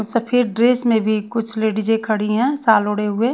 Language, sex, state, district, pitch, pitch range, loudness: Hindi, female, Haryana, Rohtak, 225 Hz, 215-235 Hz, -18 LUFS